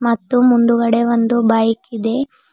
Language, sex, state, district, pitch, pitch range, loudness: Kannada, female, Karnataka, Bidar, 235 Hz, 230-245 Hz, -15 LUFS